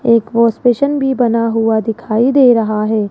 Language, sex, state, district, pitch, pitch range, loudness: Hindi, female, Rajasthan, Jaipur, 230 Hz, 220-245 Hz, -13 LUFS